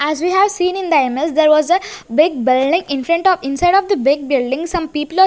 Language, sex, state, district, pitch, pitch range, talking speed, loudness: English, female, Chandigarh, Chandigarh, 315 Hz, 280-360 Hz, 250 wpm, -15 LUFS